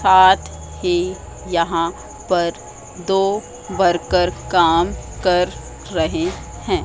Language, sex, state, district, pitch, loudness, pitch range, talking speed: Hindi, female, Madhya Pradesh, Katni, 180 Hz, -18 LUFS, 170-190 Hz, 90 wpm